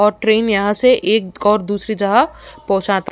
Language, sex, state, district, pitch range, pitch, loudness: Hindi, female, Uttar Pradesh, Ghazipur, 200-220 Hz, 210 Hz, -16 LUFS